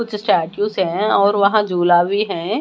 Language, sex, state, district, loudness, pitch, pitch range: Hindi, female, Odisha, Malkangiri, -17 LUFS, 200 Hz, 175-210 Hz